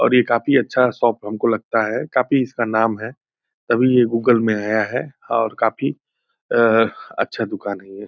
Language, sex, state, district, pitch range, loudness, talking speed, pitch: Hindi, male, Bihar, Purnia, 110-125 Hz, -19 LUFS, 185 wpm, 115 Hz